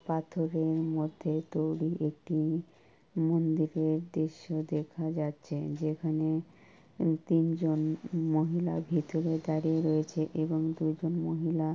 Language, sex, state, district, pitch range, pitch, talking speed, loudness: Bengali, male, West Bengal, Purulia, 155-165 Hz, 160 Hz, 85 wpm, -32 LUFS